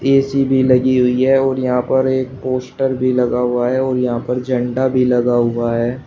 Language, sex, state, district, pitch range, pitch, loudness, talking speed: Hindi, male, Uttar Pradesh, Shamli, 125-130 Hz, 130 Hz, -16 LUFS, 215 wpm